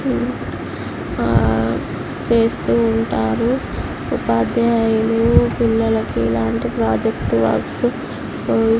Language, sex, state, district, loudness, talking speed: Telugu, female, Andhra Pradesh, Visakhapatnam, -18 LUFS, 60 wpm